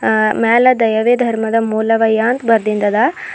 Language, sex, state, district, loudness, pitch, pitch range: Kannada, female, Karnataka, Bidar, -14 LUFS, 225 Hz, 220-240 Hz